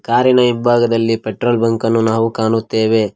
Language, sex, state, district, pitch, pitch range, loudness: Kannada, male, Karnataka, Koppal, 115 Hz, 110-120 Hz, -15 LUFS